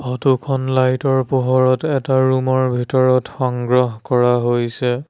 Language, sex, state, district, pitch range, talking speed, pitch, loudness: Assamese, male, Assam, Sonitpur, 125-130 Hz, 105 wpm, 130 Hz, -17 LUFS